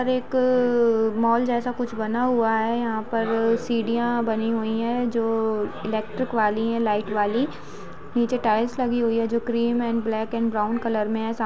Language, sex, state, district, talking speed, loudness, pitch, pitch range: Hindi, female, Bihar, Vaishali, 185 wpm, -23 LUFS, 230 Hz, 220-240 Hz